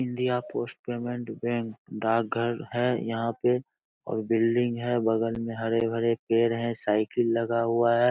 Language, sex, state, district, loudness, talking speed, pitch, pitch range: Hindi, male, Bihar, Begusarai, -27 LUFS, 155 wpm, 115 Hz, 115-120 Hz